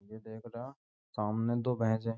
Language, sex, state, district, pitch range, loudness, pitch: Hindi, male, Uttar Pradesh, Jyotiba Phule Nagar, 110-120 Hz, -35 LUFS, 115 Hz